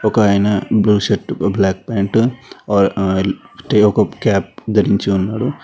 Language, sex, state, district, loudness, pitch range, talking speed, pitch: Telugu, male, Telangana, Hyderabad, -16 LUFS, 100-110 Hz, 105 wpm, 105 Hz